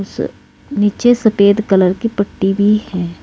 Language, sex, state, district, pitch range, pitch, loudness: Hindi, female, Uttar Pradesh, Saharanpur, 195-220 Hz, 205 Hz, -14 LUFS